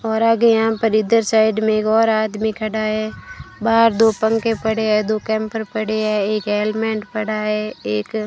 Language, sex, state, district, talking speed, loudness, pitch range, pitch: Hindi, female, Rajasthan, Bikaner, 195 wpm, -18 LUFS, 215-225 Hz, 220 Hz